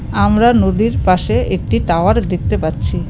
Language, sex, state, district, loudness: Bengali, female, West Bengal, Cooch Behar, -14 LUFS